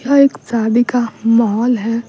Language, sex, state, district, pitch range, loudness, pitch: Hindi, female, Bihar, Patna, 230-245 Hz, -14 LUFS, 235 Hz